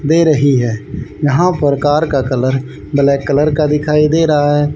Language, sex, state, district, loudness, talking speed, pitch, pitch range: Hindi, male, Haryana, Charkhi Dadri, -13 LUFS, 190 wpm, 145 Hz, 140-155 Hz